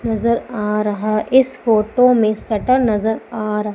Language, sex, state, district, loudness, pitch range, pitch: Hindi, female, Madhya Pradesh, Umaria, -17 LUFS, 210-235 Hz, 220 Hz